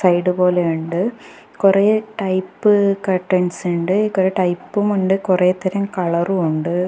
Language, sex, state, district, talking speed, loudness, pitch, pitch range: Malayalam, female, Kerala, Kasaragod, 115 wpm, -18 LUFS, 185 Hz, 180-200 Hz